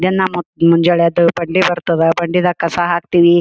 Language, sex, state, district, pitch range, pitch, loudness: Kannada, female, Karnataka, Gulbarga, 170-180 Hz, 175 Hz, -14 LUFS